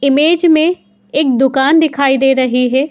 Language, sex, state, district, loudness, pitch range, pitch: Hindi, female, Uttar Pradesh, Muzaffarnagar, -12 LUFS, 265-315 Hz, 275 Hz